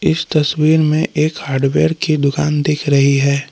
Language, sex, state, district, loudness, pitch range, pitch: Hindi, male, Jharkhand, Palamu, -15 LUFS, 140-155 Hz, 150 Hz